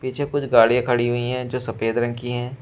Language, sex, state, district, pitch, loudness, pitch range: Hindi, male, Uttar Pradesh, Shamli, 120 Hz, -21 LUFS, 120-125 Hz